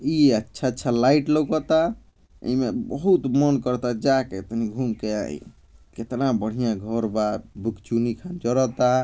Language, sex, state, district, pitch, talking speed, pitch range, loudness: Bhojpuri, male, Bihar, Gopalganj, 125 Hz, 145 wpm, 110-140 Hz, -23 LUFS